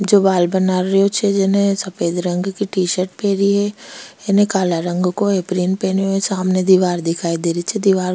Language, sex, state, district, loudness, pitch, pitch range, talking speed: Rajasthani, female, Rajasthan, Churu, -17 LUFS, 190 Hz, 180-200 Hz, 190 wpm